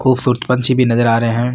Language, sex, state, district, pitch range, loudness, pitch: Marwari, male, Rajasthan, Nagaur, 120-125 Hz, -14 LUFS, 125 Hz